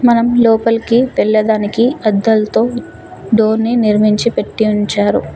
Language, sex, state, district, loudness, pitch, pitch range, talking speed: Telugu, female, Telangana, Mahabubabad, -13 LUFS, 225 Hz, 215-235 Hz, 110 wpm